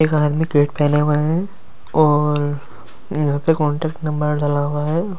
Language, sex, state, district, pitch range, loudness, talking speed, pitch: Hindi, male, Delhi, New Delhi, 145-155 Hz, -18 LUFS, 150 wpm, 150 Hz